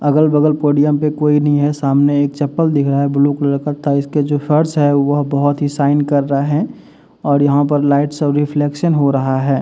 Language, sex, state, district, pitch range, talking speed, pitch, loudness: Hindi, male, Uttar Pradesh, Muzaffarnagar, 140-150 Hz, 225 wpm, 145 Hz, -15 LUFS